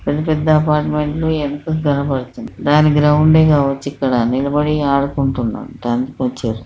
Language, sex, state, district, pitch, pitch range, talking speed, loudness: Telugu, male, Telangana, Karimnagar, 145 Hz, 135-150 Hz, 125 wpm, -16 LUFS